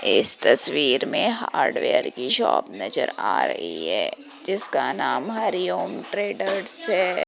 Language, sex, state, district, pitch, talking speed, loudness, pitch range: Hindi, female, Madhya Pradesh, Umaria, 205 Hz, 125 wpm, -22 LUFS, 195-310 Hz